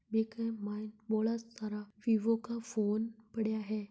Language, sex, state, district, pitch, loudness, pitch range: Marwari, male, Rajasthan, Nagaur, 220 Hz, -36 LUFS, 215-230 Hz